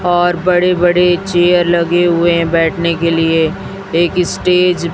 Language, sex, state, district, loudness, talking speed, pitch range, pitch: Hindi, female, Chhattisgarh, Raipur, -12 LUFS, 160 wpm, 170-180 Hz, 175 Hz